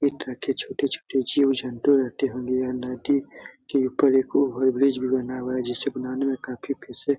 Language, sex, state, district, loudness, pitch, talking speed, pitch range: Hindi, male, Bihar, Supaul, -24 LUFS, 130 Hz, 200 wpm, 125-140 Hz